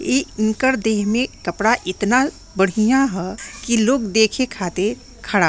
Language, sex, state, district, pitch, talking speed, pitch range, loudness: Bhojpuri, female, Bihar, Gopalganj, 220 Hz, 155 wpm, 205-255 Hz, -19 LUFS